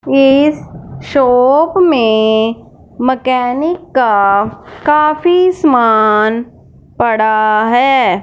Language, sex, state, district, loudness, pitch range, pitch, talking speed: Hindi, female, Punjab, Fazilka, -11 LUFS, 220-295 Hz, 250 Hz, 65 wpm